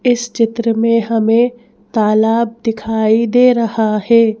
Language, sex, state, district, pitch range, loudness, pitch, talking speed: Hindi, female, Madhya Pradesh, Bhopal, 220-235 Hz, -14 LUFS, 230 Hz, 120 wpm